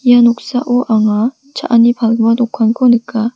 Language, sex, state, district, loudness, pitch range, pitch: Garo, female, Meghalaya, West Garo Hills, -12 LUFS, 225-245 Hz, 235 Hz